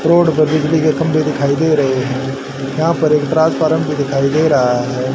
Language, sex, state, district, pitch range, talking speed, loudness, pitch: Hindi, male, Haryana, Charkhi Dadri, 135-160 Hz, 200 wpm, -15 LUFS, 150 Hz